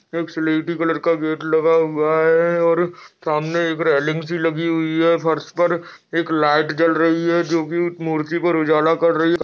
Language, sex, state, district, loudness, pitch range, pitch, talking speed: Hindi, male, Maharashtra, Aurangabad, -19 LUFS, 160-170 Hz, 165 Hz, 190 wpm